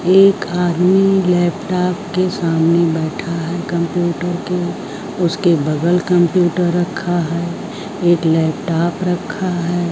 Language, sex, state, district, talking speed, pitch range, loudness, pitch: Hindi, female, Bihar, Kaimur, 110 wpm, 170-185 Hz, -16 LUFS, 175 Hz